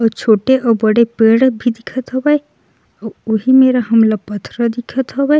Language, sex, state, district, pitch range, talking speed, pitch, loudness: Chhattisgarhi, female, Chhattisgarh, Sukma, 225-260 Hz, 165 wpm, 235 Hz, -14 LUFS